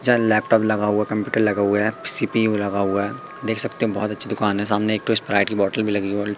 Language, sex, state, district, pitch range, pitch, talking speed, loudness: Hindi, male, Madhya Pradesh, Katni, 100-110 Hz, 105 Hz, 265 wpm, -19 LUFS